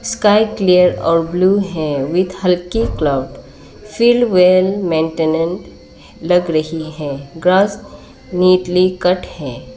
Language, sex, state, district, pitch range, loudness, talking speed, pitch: Hindi, female, Arunachal Pradesh, Lower Dibang Valley, 160-190 Hz, -15 LUFS, 110 wpm, 180 Hz